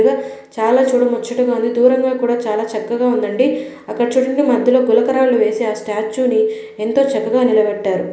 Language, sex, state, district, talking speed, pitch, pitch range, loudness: Telugu, female, Andhra Pradesh, Srikakulam, 150 wpm, 240 Hz, 220-255 Hz, -16 LUFS